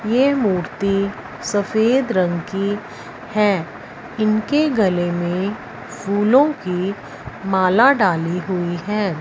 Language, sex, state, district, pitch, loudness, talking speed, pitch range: Hindi, female, Punjab, Fazilka, 200 Hz, -19 LUFS, 100 wpm, 180-220 Hz